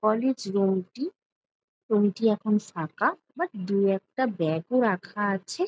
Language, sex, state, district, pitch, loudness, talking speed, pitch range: Bengali, female, West Bengal, Jalpaiguri, 210 Hz, -27 LUFS, 150 wpm, 195-255 Hz